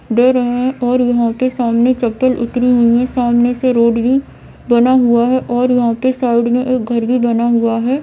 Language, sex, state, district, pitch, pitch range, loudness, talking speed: Hindi, female, Jharkhand, Jamtara, 245 Hz, 235-255 Hz, -14 LUFS, 180 wpm